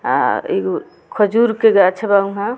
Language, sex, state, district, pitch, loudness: Bhojpuri, female, Bihar, Muzaffarpur, 220 Hz, -16 LUFS